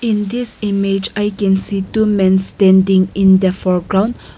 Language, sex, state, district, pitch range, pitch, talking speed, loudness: English, female, Nagaland, Kohima, 190-210 Hz, 195 Hz, 165 wpm, -14 LUFS